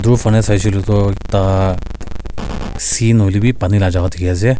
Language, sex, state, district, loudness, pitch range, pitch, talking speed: Nagamese, male, Nagaland, Kohima, -15 LUFS, 90-110 Hz, 100 Hz, 195 wpm